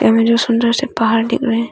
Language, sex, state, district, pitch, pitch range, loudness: Hindi, female, Arunachal Pradesh, Longding, 230 Hz, 230-235 Hz, -15 LUFS